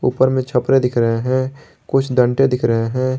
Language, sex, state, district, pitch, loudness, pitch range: Hindi, male, Jharkhand, Garhwa, 130 Hz, -17 LUFS, 120-130 Hz